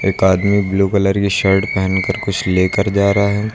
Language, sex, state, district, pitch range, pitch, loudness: Hindi, male, Uttar Pradesh, Lucknow, 95-100 Hz, 100 Hz, -15 LUFS